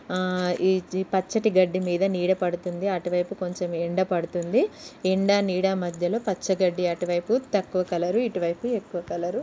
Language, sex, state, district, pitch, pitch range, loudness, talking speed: Telugu, female, Telangana, Nalgonda, 185 Hz, 175-195 Hz, -25 LUFS, 165 wpm